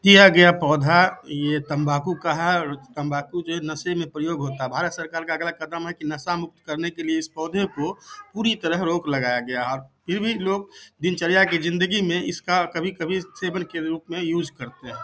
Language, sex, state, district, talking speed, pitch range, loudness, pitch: Hindi, male, Bihar, Samastipur, 210 wpm, 150-180 Hz, -22 LUFS, 170 Hz